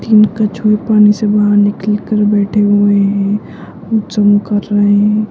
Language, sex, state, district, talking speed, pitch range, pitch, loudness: Hindi, female, Bihar, Jahanabad, 160 wpm, 205-215 Hz, 210 Hz, -12 LUFS